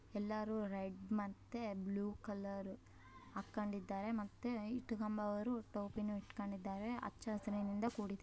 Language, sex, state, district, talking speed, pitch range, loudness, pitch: Kannada, male, Karnataka, Bellary, 90 wpm, 200-215 Hz, -44 LUFS, 205 Hz